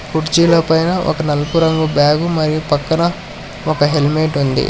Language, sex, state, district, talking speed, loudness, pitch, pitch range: Telugu, male, Telangana, Hyderabad, 140 wpm, -15 LUFS, 155 Hz, 150-165 Hz